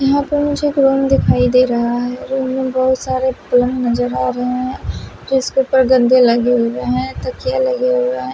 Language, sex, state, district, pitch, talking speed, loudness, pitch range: Hindi, female, Bihar, West Champaran, 255 Hz, 200 wpm, -15 LUFS, 245-270 Hz